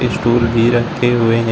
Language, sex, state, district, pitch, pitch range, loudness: Hindi, male, Uttar Pradesh, Shamli, 120 Hz, 115-120 Hz, -14 LUFS